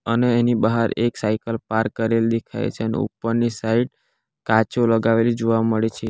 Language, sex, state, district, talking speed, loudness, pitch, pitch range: Gujarati, male, Gujarat, Valsad, 165 wpm, -21 LUFS, 115 Hz, 110-120 Hz